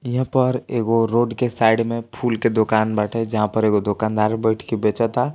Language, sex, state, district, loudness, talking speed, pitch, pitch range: Hindi, male, Bihar, East Champaran, -20 LUFS, 200 wpm, 115 Hz, 110-120 Hz